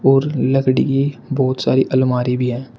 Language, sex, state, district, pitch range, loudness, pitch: Hindi, male, Uttar Pradesh, Shamli, 125-135 Hz, -17 LUFS, 130 Hz